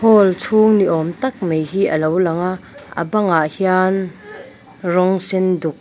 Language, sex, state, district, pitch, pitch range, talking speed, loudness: Mizo, female, Mizoram, Aizawl, 185 Hz, 170-200 Hz, 165 wpm, -17 LUFS